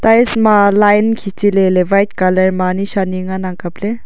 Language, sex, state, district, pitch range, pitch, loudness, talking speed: Wancho, female, Arunachal Pradesh, Longding, 185-210 Hz, 195 Hz, -13 LUFS, 175 wpm